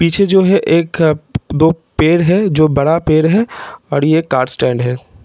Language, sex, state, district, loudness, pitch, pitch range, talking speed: Hindi, male, Jharkhand, Jamtara, -13 LUFS, 160 Hz, 140-170 Hz, 185 wpm